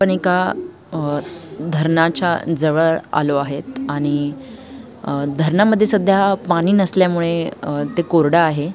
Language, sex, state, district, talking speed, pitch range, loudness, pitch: Marathi, female, Maharashtra, Dhule, 115 wpm, 150-190 Hz, -17 LUFS, 170 Hz